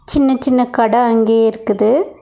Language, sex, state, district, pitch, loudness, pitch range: Tamil, female, Tamil Nadu, Nilgiris, 235 Hz, -14 LUFS, 225-250 Hz